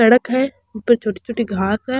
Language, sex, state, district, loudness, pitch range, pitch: Rajasthani, female, Rajasthan, Churu, -19 LUFS, 215-250 Hz, 235 Hz